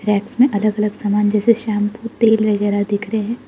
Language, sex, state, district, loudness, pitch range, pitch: Hindi, female, Arunachal Pradesh, Lower Dibang Valley, -17 LUFS, 205-225 Hz, 210 Hz